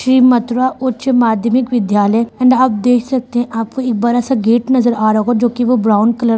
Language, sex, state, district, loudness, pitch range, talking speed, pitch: Hindi, female, Bihar, Sitamarhi, -13 LUFS, 225-255 Hz, 225 wpm, 240 Hz